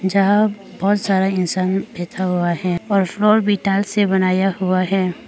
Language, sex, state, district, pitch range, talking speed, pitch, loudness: Hindi, female, Arunachal Pradesh, Papum Pare, 185-200 Hz, 170 wpm, 190 Hz, -18 LUFS